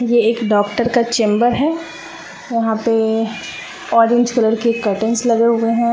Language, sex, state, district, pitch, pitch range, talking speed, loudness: Hindi, female, Bihar, West Champaran, 230 Hz, 225-240 Hz, 150 wpm, -16 LUFS